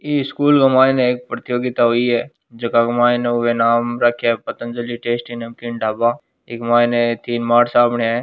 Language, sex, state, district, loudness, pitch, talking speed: Hindi, male, Rajasthan, Nagaur, -17 LUFS, 120 Hz, 155 wpm